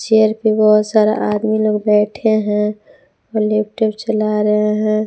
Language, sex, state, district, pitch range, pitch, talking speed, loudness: Hindi, female, Jharkhand, Palamu, 210-215 Hz, 215 Hz, 155 wpm, -15 LUFS